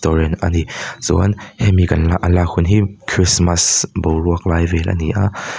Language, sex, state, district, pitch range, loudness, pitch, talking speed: Mizo, male, Mizoram, Aizawl, 85-100 Hz, -16 LUFS, 90 Hz, 195 wpm